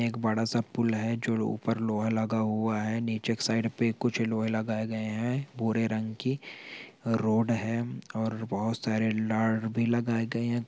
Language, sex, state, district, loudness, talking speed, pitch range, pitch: Hindi, male, Chhattisgarh, Balrampur, -30 LUFS, 180 wpm, 110-115 Hz, 115 Hz